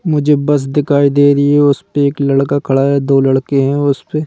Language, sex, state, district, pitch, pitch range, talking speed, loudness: Hindi, male, Madhya Pradesh, Bhopal, 140 Hz, 140-145 Hz, 250 wpm, -12 LUFS